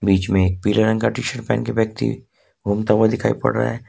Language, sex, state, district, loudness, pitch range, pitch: Hindi, male, Jharkhand, Ranchi, -20 LUFS, 105-125 Hz, 110 Hz